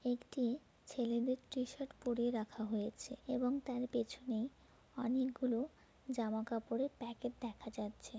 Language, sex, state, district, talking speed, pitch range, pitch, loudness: Bengali, female, West Bengal, Jalpaiguri, 110 wpm, 235-260 Hz, 245 Hz, -41 LUFS